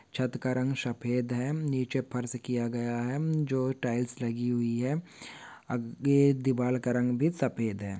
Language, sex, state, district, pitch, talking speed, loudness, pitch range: Hindi, male, Maharashtra, Dhule, 125 Hz, 165 wpm, -30 LUFS, 120-135 Hz